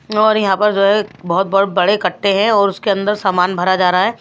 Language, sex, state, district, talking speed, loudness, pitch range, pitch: Hindi, female, Bihar, West Champaran, 255 wpm, -14 LUFS, 185-210 Hz, 195 Hz